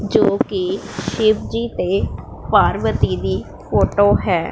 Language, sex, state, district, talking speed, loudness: Punjabi, female, Punjab, Pathankot, 120 wpm, -18 LUFS